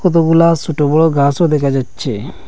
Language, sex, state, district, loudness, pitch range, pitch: Bengali, male, Assam, Hailakandi, -13 LUFS, 140-165 Hz, 160 Hz